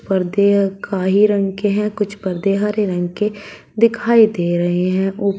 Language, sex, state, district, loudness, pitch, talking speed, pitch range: Hindi, female, Uttar Pradesh, Shamli, -17 LUFS, 200 Hz, 180 wpm, 190-210 Hz